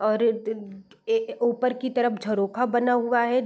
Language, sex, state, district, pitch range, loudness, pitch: Hindi, female, Bihar, Gopalganj, 220-250 Hz, -25 LUFS, 240 Hz